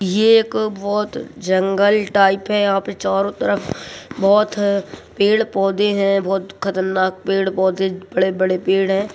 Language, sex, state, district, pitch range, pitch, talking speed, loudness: Hindi, male, Uttarakhand, Uttarkashi, 190-205 Hz, 195 Hz, 130 wpm, -18 LUFS